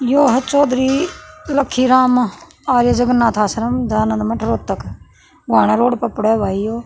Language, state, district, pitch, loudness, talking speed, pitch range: Haryanvi, Haryana, Rohtak, 245 Hz, -16 LUFS, 140 wpm, 220-255 Hz